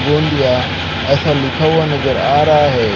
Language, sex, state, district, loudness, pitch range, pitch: Hindi, male, Maharashtra, Gondia, -14 LUFS, 130-150 Hz, 145 Hz